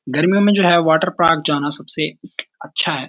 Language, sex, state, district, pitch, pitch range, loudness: Hindi, male, Uttarakhand, Uttarkashi, 165 Hz, 150-180 Hz, -16 LUFS